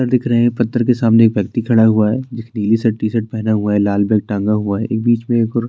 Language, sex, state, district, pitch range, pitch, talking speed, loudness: Hindi, male, Uttarakhand, Tehri Garhwal, 105-120 Hz, 115 Hz, 315 wpm, -15 LUFS